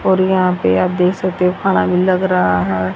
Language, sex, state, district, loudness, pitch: Hindi, female, Haryana, Rohtak, -15 LUFS, 180 Hz